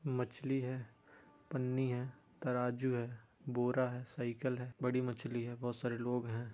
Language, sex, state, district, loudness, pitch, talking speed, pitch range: Hindi, male, Bihar, Darbhanga, -39 LUFS, 125 Hz, 155 wpm, 120-130 Hz